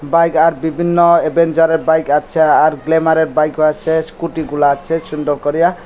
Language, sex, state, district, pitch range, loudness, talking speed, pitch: Bengali, male, Tripura, West Tripura, 155-165 Hz, -14 LUFS, 145 wpm, 160 Hz